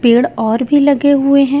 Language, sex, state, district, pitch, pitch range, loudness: Hindi, female, Bihar, Katihar, 275 Hz, 240-285 Hz, -12 LUFS